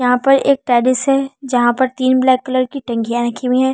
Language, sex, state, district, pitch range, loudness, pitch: Hindi, female, Delhi, New Delhi, 245-270 Hz, -15 LUFS, 255 Hz